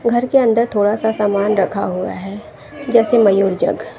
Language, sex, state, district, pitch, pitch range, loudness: Hindi, female, Bihar, West Champaran, 210 Hz, 195-230 Hz, -16 LUFS